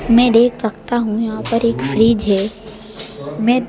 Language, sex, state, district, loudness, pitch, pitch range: Hindi, male, Madhya Pradesh, Bhopal, -16 LUFS, 225 Hz, 215-235 Hz